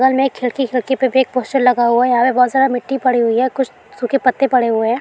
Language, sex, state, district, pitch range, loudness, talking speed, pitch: Hindi, female, Bihar, Araria, 245-265 Hz, -15 LUFS, 310 wpm, 255 Hz